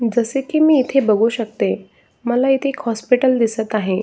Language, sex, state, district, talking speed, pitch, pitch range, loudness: Marathi, male, Maharashtra, Solapur, 180 wpm, 240 Hz, 220-270 Hz, -17 LUFS